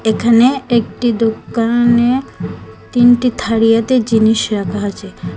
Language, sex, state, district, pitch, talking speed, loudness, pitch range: Bengali, female, Assam, Hailakandi, 230 Hz, 90 wpm, -13 LUFS, 220-240 Hz